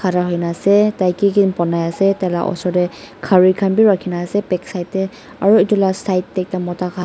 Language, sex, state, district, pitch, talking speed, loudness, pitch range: Nagamese, female, Nagaland, Dimapur, 185 Hz, 215 wpm, -16 LUFS, 180-200 Hz